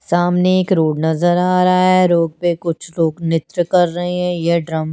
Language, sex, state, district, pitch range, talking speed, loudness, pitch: Hindi, female, Chandigarh, Chandigarh, 165-180 Hz, 205 wpm, -16 LUFS, 175 Hz